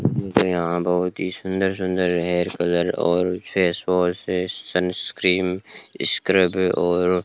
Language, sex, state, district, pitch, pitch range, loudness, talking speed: Hindi, male, Rajasthan, Bikaner, 90 Hz, 90-95 Hz, -21 LUFS, 130 wpm